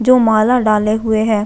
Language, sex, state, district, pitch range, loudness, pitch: Hindi, female, Chhattisgarh, Bastar, 215-230 Hz, -13 LUFS, 220 Hz